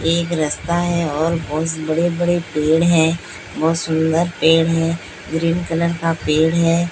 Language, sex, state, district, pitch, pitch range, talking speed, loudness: Hindi, female, Odisha, Sambalpur, 165 Hz, 160-170 Hz, 155 wpm, -18 LUFS